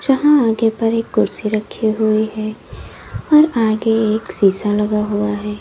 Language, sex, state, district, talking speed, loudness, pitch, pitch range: Hindi, female, Uttar Pradesh, Lalitpur, 160 wpm, -16 LUFS, 215 Hz, 210-225 Hz